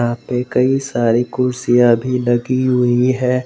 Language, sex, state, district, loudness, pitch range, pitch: Hindi, male, Jharkhand, Garhwa, -16 LUFS, 120-125 Hz, 125 Hz